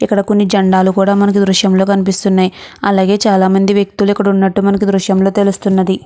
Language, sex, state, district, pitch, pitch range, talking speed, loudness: Telugu, female, Andhra Pradesh, Guntur, 195 Hz, 190-200 Hz, 150 wpm, -12 LUFS